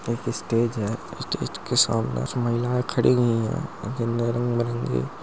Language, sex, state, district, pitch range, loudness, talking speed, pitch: Hindi, male, Uttar Pradesh, Hamirpur, 115-120 Hz, -25 LUFS, 185 wpm, 115 Hz